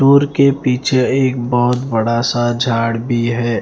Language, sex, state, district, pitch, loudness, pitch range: Hindi, male, Punjab, Fazilka, 120 Hz, -15 LUFS, 115-130 Hz